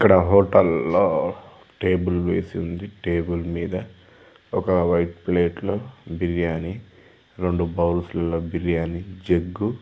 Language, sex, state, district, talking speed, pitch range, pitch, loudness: Telugu, male, Telangana, Karimnagar, 115 wpm, 85-95 Hz, 90 Hz, -22 LUFS